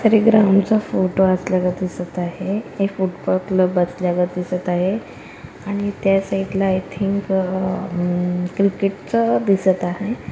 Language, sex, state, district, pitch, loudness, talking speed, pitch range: Marathi, female, Maharashtra, Solapur, 190 Hz, -19 LUFS, 140 wpm, 180-195 Hz